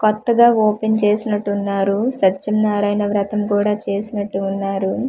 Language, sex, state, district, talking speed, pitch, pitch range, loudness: Telugu, female, Andhra Pradesh, Manyam, 95 wpm, 205 Hz, 200-215 Hz, -18 LUFS